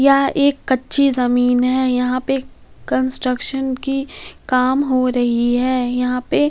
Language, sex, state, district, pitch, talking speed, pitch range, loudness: Hindi, female, Bihar, Kaimur, 255 Hz, 140 wpm, 250-270 Hz, -17 LUFS